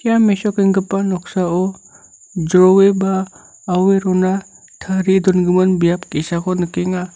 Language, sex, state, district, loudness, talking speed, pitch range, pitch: Garo, male, Meghalaya, North Garo Hills, -16 LUFS, 100 wpm, 180-195 Hz, 185 Hz